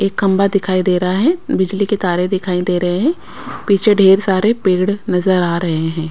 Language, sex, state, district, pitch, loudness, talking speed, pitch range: Hindi, female, Bihar, Kaimur, 190 Hz, -15 LUFS, 205 wpm, 180-200 Hz